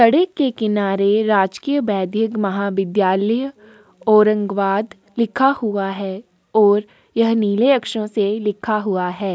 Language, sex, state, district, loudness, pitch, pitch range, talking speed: Hindi, female, Maharashtra, Aurangabad, -18 LUFS, 210 Hz, 200-225 Hz, 115 wpm